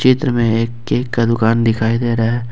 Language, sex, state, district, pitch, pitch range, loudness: Hindi, male, Jharkhand, Ranchi, 115 Hz, 115-120 Hz, -16 LUFS